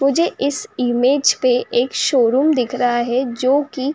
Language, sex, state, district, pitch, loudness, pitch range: Hindi, female, Uttar Pradesh, Jyotiba Phule Nagar, 260 Hz, -17 LUFS, 245-280 Hz